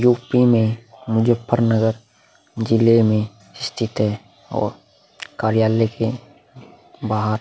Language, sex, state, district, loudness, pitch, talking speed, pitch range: Hindi, male, Uttar Pradesh, Muzaffarnagar, -19 LUFS, 115 Hz, 95 wpm, 110-120 Hz